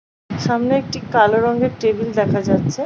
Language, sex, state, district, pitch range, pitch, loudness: Bengali, female, West Bengal, Paschim Medinipur, 215-240 Hz, 225 Hz, -18 LUFS